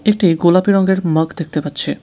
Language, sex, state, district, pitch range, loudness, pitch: Bengali, male, West Bengal, Cooch Behar, 160-195 Hz, -15 LUFS, 175 Hz